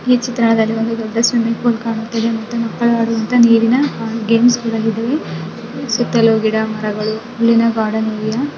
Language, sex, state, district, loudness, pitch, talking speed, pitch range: Kannada, female, Karnataka, Dakshina Kannada, -16 LUFS, 230 Hz, 120 wpm, 225-235 Hz